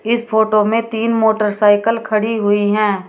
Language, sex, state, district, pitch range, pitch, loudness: Hindi, female, Uttar Pradesh, Shamli, 210-225 Hz, 220 Hz, -15 LUFS